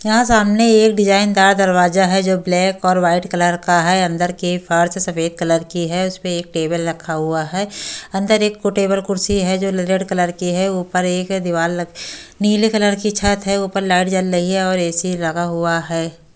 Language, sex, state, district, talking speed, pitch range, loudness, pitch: Hindi, female, Delhi, New Delhi, 210 wpm, 175-195 Hz, -16 LUFS, 185 Hz